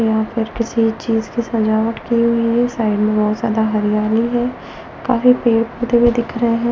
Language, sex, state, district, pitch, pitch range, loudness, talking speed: Hindi, female, Delhi, New Delhi, 230 Hz, 220-235 Hz, -17 LUFS, 195 wpm